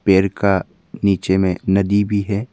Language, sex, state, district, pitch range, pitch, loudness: Hindi, male, Arunachal Pradesh, Papum Pare, 95-100 Hz, 100 Hz, -18 LUFS